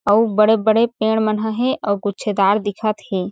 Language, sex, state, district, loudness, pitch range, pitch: Chhattisgarhi, female, Chhattisgarh, Sarguja, -18 LUFS, 205-220 Hz, 215 Hz